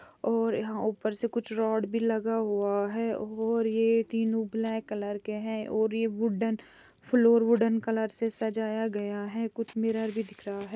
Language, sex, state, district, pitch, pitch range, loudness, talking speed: Hindi, female, Andhra Pradesh, Chittoor, 225 Hz, 215-225 Hz, -29 LUFS, 185 wpm